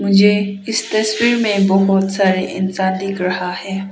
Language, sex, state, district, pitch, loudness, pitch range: Hindi, female, Arunachal Pradesh, Papum Pare, 195 Hz, -16 LUFS, 190-205 Hz